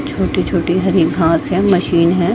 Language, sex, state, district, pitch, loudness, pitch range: Hindi, female, Jharkhand, Sahebganj, 175 Hz, -15 LUFS, 170-180 Hz